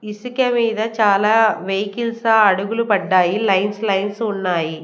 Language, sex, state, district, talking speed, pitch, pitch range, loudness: Telugu, female, Andhra Pradesh, Manyam, 110 wpm, 210 Hz, 195-225 Hz, -17 LUFS